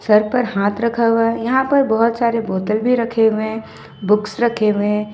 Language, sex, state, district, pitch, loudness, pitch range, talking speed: Hindi, female, Jharkhand, Ranchi, 225 Hz, -17 LUFS, 210-235 Hz, 210 wpm